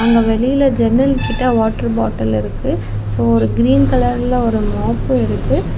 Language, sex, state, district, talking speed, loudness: Tamil, female, Tamil Nadu, Kanyakumari, 145 wpm, -15 LUFS